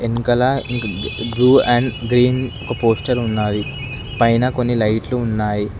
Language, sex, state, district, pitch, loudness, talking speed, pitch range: Telugu, male, Telangana, Hyderabad, 120 Hz, -18 LUFS, 115 wpm, 110-125 Hz